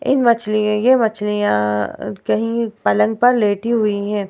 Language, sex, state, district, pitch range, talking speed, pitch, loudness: Hindi, female, Bihar, Vaishali, 200-230 Hz, 140 wpm, 210 Hz, -17 LUFS